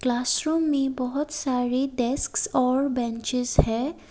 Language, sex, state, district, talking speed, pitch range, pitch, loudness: Hindi, female, Assam, Kamrup Metropolitan, 115 wpm, 245-275 Hz, 255 Hz, -25 LUFS